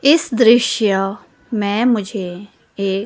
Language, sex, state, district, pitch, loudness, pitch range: Hindi, female, Himachal Pradesh, Shimla, 210 Hz, -16 LUFS, 195-235 Hz